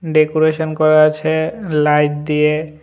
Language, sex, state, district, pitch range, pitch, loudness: Bengali, male, Tripura, West Tripura, 150-160 Hz, 155 Hz, -15 LUFS